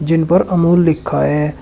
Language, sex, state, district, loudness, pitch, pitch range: Hindi, male, Uttar Pradesh, Shamli, -14 LUFS, 165 Hz, 150-175 Hz